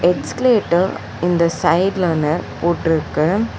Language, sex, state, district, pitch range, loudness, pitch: Tamil, female, Tamil Nadu, Chennai, 160-185 Hz, -18 LUFS, 170 Hz